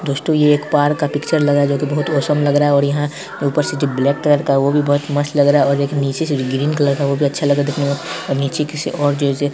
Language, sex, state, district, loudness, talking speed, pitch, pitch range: Hindi, male, Bihar, Saharsa, -16 LUFS, 335 wpm, 145 Hz, 140-145 Hz